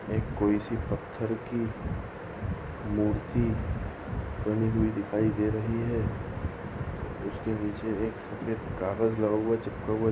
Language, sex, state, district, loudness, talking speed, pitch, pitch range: Hindi, male, Goa, North and South Goa, -31 LUFS, 125 wpm, 110 Hz, 105-110 Hz